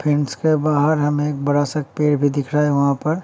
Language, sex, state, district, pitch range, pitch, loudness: Hindi, male, Uttar Pradesh, Varanasi, 145-150 Hz, 145 Hz, -19 LUFS